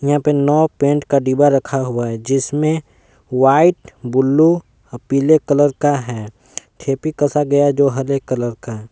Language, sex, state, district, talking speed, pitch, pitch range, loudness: Hindi, male, Jharkhand, Palamu, 170 wpm, 140 Hz, 125-145 Hz, -16 LUFS